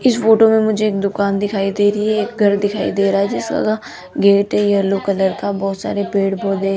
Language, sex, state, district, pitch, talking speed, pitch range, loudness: Hindi, female, Rajasthan, Jaipur, 200 Hz, 250 wpm, 195-210 Hz, -16 LUFS